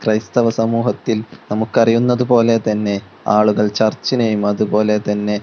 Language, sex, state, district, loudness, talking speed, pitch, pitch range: Malayalam, male, Kerala, Kozhikode, -16 LUFS, 75 wpm, 110 Hz, 105-115 Hz